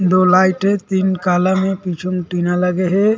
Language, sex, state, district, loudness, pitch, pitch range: Chhattisgarhi, male, Chhattisgarh, Rajnandgaon, -16 LUFS, 185 Hz, 180-190 Hz